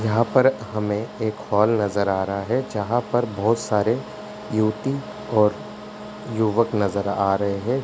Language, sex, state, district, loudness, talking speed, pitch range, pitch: Hindi, male, Uttar Pradesh, Ghazipur, -22 LUFS, 155 wpm, 105-120 Hz, 110 Hz